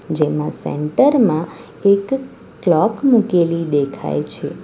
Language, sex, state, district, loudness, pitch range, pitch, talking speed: Gujarati, female, Gujarat, Valsad, -17 LUFS, 150-225 Hz, 170 Hz, 105 wpm